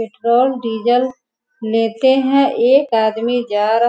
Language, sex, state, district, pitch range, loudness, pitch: Hindi, female, Bihar, Sitamarhi, 225-260 Hz, -15 LUFS, 240 Hz